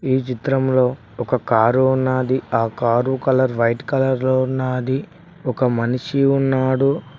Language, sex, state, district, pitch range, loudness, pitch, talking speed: Telugu, male, Telangana, Mahabubabad, 125-135 Hz, -19 LUFS, 130 Hz, 125 wpm